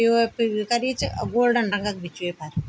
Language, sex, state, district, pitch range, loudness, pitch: Garhwali, female, Uttarakhand, Tehri Garhwal, 175-235 Hz, -24 LUFS, 220 Hz